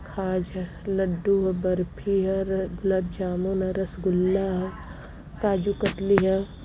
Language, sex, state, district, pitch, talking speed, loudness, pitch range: Hindi, female, Uttar Pradesh, Varanasi, 190 Hz, 125 wpm, -26 LUFS, 185-195 Hz